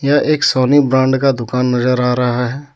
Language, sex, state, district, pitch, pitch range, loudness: Hindi, male, Jharkhand, Deoghar, 130 Hz, 125-140 Hz, -14 LUFS